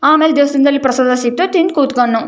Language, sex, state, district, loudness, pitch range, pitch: Kannada, female, Karnataka, Chamarajanagar, -12 LUFS, 255-310 Hz, 280 Hz